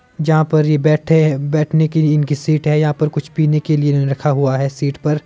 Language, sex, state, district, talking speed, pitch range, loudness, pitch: Hindi, male, Himachal Pradesh, Shimla, 250 wpm, 145-155 Hz, -15 LUFS, 150 Hz